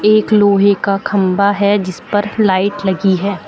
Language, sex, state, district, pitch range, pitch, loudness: Hindi, female, Uttar Pradesh, Lucknow, 195-205 Hz, 200 Hz, -14 LUFS